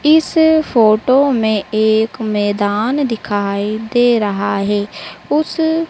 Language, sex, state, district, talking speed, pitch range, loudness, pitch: Hindi, female, Madhya Pradesh, Dhar, 100 wpm, 205-285 Hz, -15 LUFS, 220 Hz